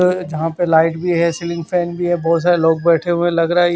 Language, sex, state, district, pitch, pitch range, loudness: Hindi, male, Haryana, Charkhi Dadri, 170 Hz, 165-175 Hz, -16 LUFS